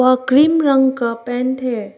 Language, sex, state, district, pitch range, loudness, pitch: Hindi, female, Arunachal Pradesh, Papum Pare, 245-265 Hz, -16 LUFS, 255 Hz